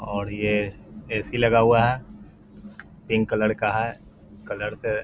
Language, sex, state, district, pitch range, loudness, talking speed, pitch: Hindi, male, Bihar, Lakhisarai, 105-115 Hz, -23 LUFS, 155 wpm, 110 Hz